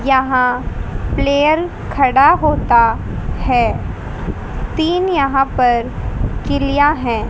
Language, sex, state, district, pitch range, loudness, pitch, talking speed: Hindi, female, Haryana, Rohtak, 250-295 Hz, -16 LUFS, 270 Hz, 80 wpm